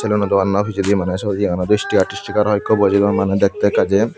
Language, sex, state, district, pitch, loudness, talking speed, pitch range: Chakma, female, Tripura, Unakoti, 100 Hz, -17 LUFS, 185 wpm, 100-105 Hz